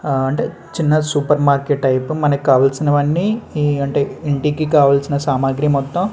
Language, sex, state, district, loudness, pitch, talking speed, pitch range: Telugu, male, Andhra Pradesh, Srikakulam, -16 LUFS, 145 Hz, 155 wpm, 140-155 Hz